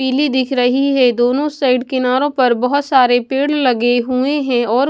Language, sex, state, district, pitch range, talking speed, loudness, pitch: Hindi, female, Punjab, Kapurthala, 250-275 Hz, 185 wpm, -15 LUFS, 260 Hz